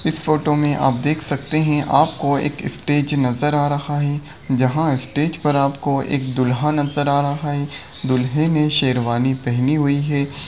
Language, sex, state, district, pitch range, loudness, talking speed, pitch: Hindi, male, Bihar, Begusarai, 135-150 Hz, -19 LUFS, 170 wpm, 145 Hz